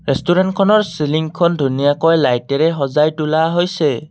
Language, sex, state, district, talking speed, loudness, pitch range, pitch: Assamese, male, Assam, Kamrup Metropolitan, 145 wpm, -15 LUFS, 145-170 Hz, 155 Hz